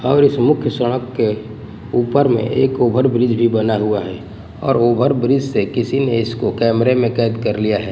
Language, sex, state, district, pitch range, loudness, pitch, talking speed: Hindi, male, Gujarat, Gandhinagar, 110-130 Hz, -16 LUFS, 120 Hz, 205 wpm